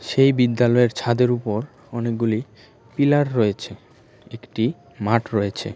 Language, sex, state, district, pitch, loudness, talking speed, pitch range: Bengali, male, Tripura, West Tripura, 115 Hz, -21 LUFS, 105 wpm, 110-125 Hz